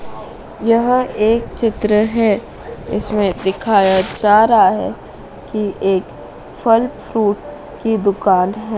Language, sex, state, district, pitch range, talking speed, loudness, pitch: Hindi, female, Madhya Pradesh, Dhar, 200-225 Hz, 110 wpm, -16 LUFS, 215 Hz